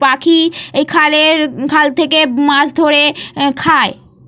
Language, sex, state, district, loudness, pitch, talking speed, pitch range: Bengali, female, Jharkhand, Jamtara, -11 LUFS, 300 Hz, 110 wpm, 285-315 Hz